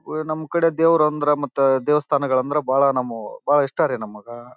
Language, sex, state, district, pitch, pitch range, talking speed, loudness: Kannada, male, Karnataka, Bellary, 145 Hz, 130-150 Hz, 170 wpm, -20 LUFS